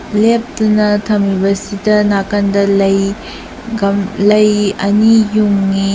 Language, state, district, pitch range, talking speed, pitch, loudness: Manipuri, Manipur, Imphal West, 200-215 Hz, 80 wpm, 205 Hz, -13 LUFS